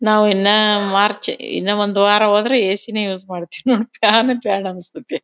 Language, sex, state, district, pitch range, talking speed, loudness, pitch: Kannada, female, Karnataka, Bellary, 200-215 Hz, 150 wpm, -16 LUFS, 205 Hz